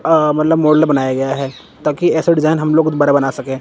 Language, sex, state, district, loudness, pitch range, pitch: Hindi, male, Chandigarh, Chandigarh, -14 LUFS, 135-155 Hz, 150 Hz